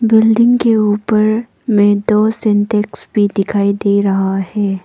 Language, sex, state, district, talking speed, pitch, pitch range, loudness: Hindi, female, Arunachal Pradesh, Papum Pare, 135 wpm, 210 Hz, 200-220 Hz, -14 LUFS